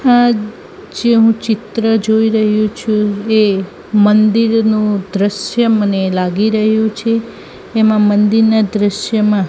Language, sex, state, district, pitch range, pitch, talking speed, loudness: Gujarati, female, Gujarat, Gandhinagar, 205-225 Hz, 215 Hz, 105 wpm, -13 LUFS